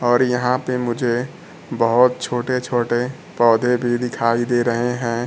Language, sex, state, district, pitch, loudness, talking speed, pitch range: Hindi, male, Bihar, Kaimur, 120 Hz, -19 LUFS, 150 wpm, 120-125 Hz